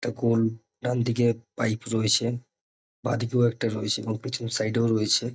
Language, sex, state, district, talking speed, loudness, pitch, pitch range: Bengali, male, West Bengal, North 24 Parganas, 145 wpm, -26 LUFS, 115 Hz, 110-120 Hz